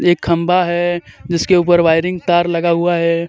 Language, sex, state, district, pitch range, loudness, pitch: Hindi, male, Jharkhand, Deoghar, 170-175 Hz, -15 LUFS, 175 Hz